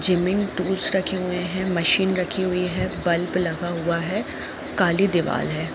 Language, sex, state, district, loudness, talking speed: Hindi, female, Uttar Pradesh, Jalaun, -21 LUFS, 165 wpm